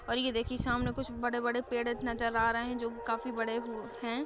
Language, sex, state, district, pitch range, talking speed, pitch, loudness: Hindi, female, Bihar, Lakhisarai, 230-240 Hz, 240 wpm, 235 Hz, -33 LUFS